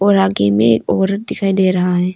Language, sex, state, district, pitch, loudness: Hindi, female, Arunachal Pradesh, Longding, 180 Hz, -15 LUFS